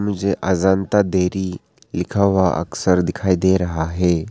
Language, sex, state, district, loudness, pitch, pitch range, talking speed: Hindi, male, Arunachal Pradesh, Papum Pare, -19 LUFS, 95 Hz, 90-95 Hz, 140 wpm